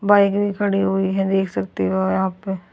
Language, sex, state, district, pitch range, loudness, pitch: Hindi, female, Haryana, Charkhi Dadri, 180-200 Hz, -20 LUFS, 195 Hz